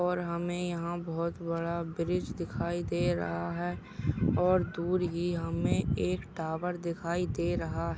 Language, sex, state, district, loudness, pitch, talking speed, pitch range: Hindi, female, Maharashtra, Solapur, -32 LUFS, 170 Hz, 150 wpm, 165-175 Hz